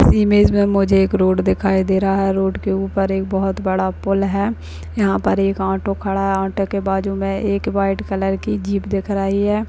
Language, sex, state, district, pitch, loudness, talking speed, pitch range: Hindi, female, Bihar, Jahanabad, 195 Hz, -18 LUFS, 225 wpm, 190-200 Hz